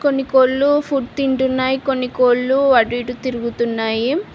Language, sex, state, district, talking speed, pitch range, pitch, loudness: Telugu, female, Telangana, Mahabubabad, 125 wpm, 245-270 Hz, 260 Hz, -17 LUFS